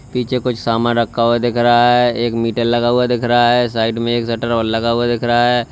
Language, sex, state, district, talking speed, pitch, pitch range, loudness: Hindi, male, Uttar Pradesh, Lalitpur, 250 wpm, 120 Hz, 115-120 Hz, -15 LUFS